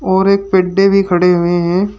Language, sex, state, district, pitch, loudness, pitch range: Hindi, male, Uttar Pradesh, Shamli, 190 Hz, -12 LUFS, 180-195 Hz